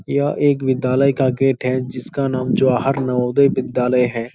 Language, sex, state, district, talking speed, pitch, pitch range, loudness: Hindi, male, Bihar, Supaul, 165 wpm, 130 Hz, 125-135 Hz, -18 LUFS